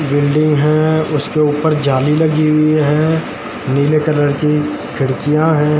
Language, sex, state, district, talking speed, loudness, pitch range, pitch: Hindi, male, Uttarakhand, Tehri Garhwal, 135 wpm, -14 LUFS, 145-155 Hz, 150 Hz